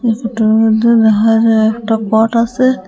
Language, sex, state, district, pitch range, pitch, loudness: Bengali, female, Assam, Hailakandi, 220-230 Hz, 225 Hz, -12 LUFS